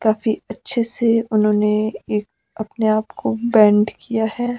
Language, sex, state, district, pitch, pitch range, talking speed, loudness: Hindi, male, Himachal Pradesh, Shimla, 220 Hz, 215-230 Hz, 130 wpm, -19 LUFS